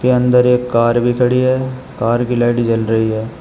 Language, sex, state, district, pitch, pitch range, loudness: Hindi, male, Uttar Pradesh, Shamli, 120 Hz, 115-125 Hz, -15 LUFS